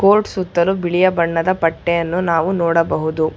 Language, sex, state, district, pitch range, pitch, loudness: Kannada, female, Karnataka, Bangalore, 165-185 Hz, 170 Hz, -17 LUFS